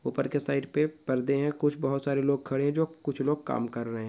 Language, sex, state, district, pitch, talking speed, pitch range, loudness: Hindi, male, Uttar Pradesh, Etah, 140 Hz, 280 wpm, 135-145 Hz, -29 LUFS